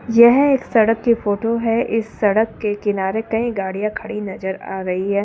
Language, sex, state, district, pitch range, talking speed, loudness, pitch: Hindi, female, Delhi, New Delhi, 200-230 Hz, 195 wpm, -18 LUFS, 220 Hz